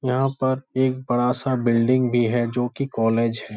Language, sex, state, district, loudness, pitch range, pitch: Hindi, male, Bihar, Supaul, -22 LUFS, 120-130 Hz, 125 Hz